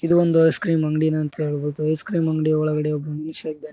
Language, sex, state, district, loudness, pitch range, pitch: Kannada, male, Karnataka, Koppal, -20 LUFS, 150-160 Hz, 155 Hz